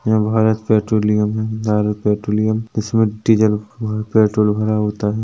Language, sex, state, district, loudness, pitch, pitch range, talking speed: Hindi, male, Chhattisgarh, Rajnandgaon, -17 LUFS, 110 Hz, 105-110 Hz, 150 wpm